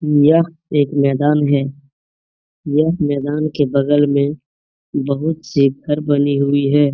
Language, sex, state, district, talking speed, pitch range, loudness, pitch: Hindi, male, Bihar, Jamui, 130 wpm, 140-150 Hz, -16 LUFS, 145 Hz